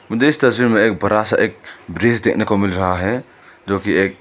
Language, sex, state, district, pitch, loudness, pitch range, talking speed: Hindi, male, Arunachal Pradesh, Lower Dibang Valley, 105 Hz, -17 LUFS, 95-115 Hz, 240 wpm